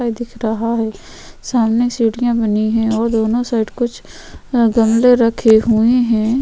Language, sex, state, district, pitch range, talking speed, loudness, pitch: Hindi, female, Chhattisgarh, Sukma, 225-240 Hz, 150 wpm, -15 LUFS, 230 Hz